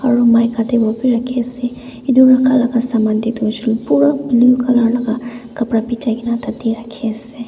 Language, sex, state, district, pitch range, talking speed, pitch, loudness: Nagamese, female, Nagaland, Dimapur, 230-250 Hz, 190 wpm, 235 Hz, -15 LUFS